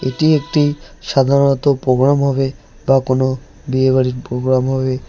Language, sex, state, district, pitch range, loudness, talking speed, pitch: Bengali, male, West Bengal, Alipurduar, 130-140 Hz, -16 LUFS, 130 wpm, 130 Hz